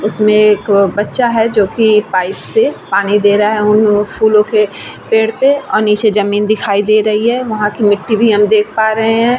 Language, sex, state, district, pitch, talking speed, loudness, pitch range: Hindi, female, Bihar, Vaishali, 215 Hz, 215 wpm, -12 LUFS, 205-220 Hz